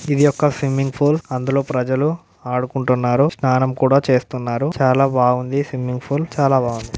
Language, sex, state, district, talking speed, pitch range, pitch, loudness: Telugu, male, Telangana, Karimnagar, 135 wpm, 125-140 Hz, 135 Hz, -18 LUFS